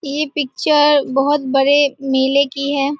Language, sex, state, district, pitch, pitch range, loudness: Hindi, female, Bihar, Jahanabad, 280 Hz, 270-290 Hz, -15 LUFS